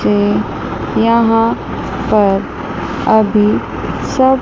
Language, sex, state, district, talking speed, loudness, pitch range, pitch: Hindi, female, Chandigarh, Chandigarh, 70 wpm, -14 LUFS, 210-230 Hz, 220 Hz